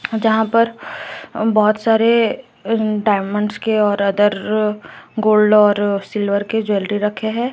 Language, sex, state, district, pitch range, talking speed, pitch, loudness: Hindi, female, Chhattisgarh, Raipur, 205-220 Hz, 120 wpm, 215 Hz, -16 LUFS